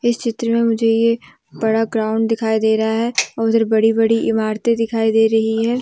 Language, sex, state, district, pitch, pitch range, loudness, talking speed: Hindi, female, Jharkhand, Deoghar, 225 Hz, 220-230 Hz, -17 LUFS, 195 wpm